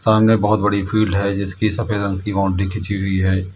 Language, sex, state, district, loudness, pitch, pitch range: Hindi, male, Uttar Pradesh, Lalitpur, -18 LUFS, 100 Hz, 95-110 Hz